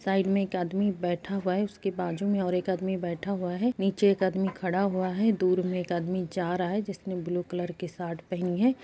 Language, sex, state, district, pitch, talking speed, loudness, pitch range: Hindi, female, Bihar, East Champaran, 185 Hz, 245 wpm, -29 LUFS, 180-195 Hz